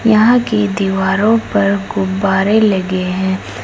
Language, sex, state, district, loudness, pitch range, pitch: Hindi, female, Uttar Pradesh, Saharanpur, -14 LUFS, 190-215 Hz, 195 Hz